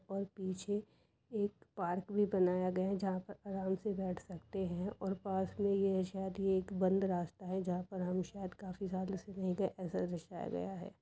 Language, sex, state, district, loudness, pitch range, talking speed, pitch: Hindi, female, Uttar Pradesh, Jyotiba Phule Nagar, -38 LUFS, 185-195 Hz, 200 wpm, 190 Hz